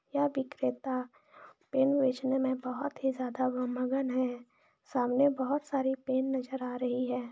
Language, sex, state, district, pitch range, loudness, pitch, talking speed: Hindi, female, Jharkhand, Jamtara, 255-275 Hz, -32 LUFS, 260 Hz, 150 wpm